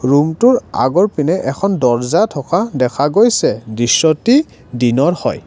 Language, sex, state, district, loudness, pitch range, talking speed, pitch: Assamese, male, Assam, Kamrup Metropolitan, -14 LUFS, 125-195 Hz, 110 wpm, 155 Hz